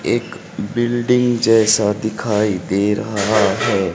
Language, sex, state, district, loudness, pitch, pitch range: Hindi, male, Haryana, Rohtak, -17 LUFS, 110 Hz, 105-115 Hz